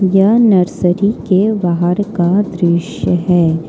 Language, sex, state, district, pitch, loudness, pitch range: Hindi, female, Jharkhand, Ranchi, 180 Hz, -13 LUFS, 175-200 Hz